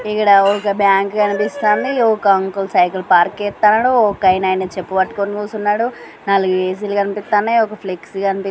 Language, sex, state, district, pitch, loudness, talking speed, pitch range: Telugu, female, Andhra Pradesh, Srikakulam, 200 Hz, -16 LUFS, 140 wpm, 190-210 Hz